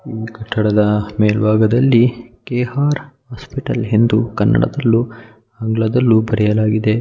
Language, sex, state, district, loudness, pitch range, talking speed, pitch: Kannada, male, Karnataka, Mysore, -16 LUFS, 110-120 Hz, 75 wpm, 115 Hz